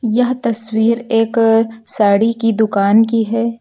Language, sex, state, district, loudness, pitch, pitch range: Hindi, female, Uttar Pradesh, Lucknow, -14 LUFS, 225 Hz, 220-230 Hz